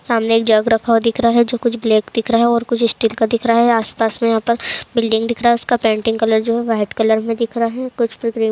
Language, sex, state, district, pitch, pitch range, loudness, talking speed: Hindi, female, Uttar Pradesh, Jalaun, 230 Hz, 225-235 Hz, -16 LUFS, 310 wpm